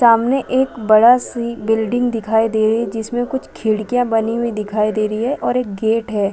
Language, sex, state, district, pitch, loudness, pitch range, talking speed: Hindi, female, Chhattisgarh, Balrampur, 225 Hz, -17 LUFS, 215-245 Hz, 210 wpm